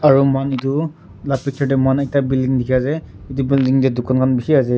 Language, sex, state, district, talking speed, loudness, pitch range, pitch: Nagamese, male, Nagaland, Dimapur, 215 wpm, -18 LUFS, 130-140 Hz, 135 Hz